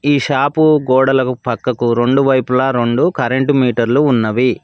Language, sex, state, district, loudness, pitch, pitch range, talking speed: Telugu, male, Telangana, Mahabubabad, -14 LUFS, 130 Hz, 120-140 Hz, 130 wpm